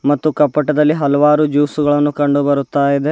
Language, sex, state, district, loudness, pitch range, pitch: Kannada, male, Karnataka, Bidar, -14 LUFS, 145-150 Hz, 145 Hz